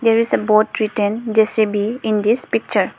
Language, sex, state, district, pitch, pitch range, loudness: English, female, Arunachal Pradesh, Lower Dibang Valley, 220 Hz, 215-225 Hz, -17 LUFS